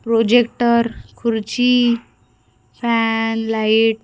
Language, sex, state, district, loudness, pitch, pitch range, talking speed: Marathi, female, Maharashtra, Gondia, -17 LUFS, 225 Hz, 220-235 Hz, 75 wpm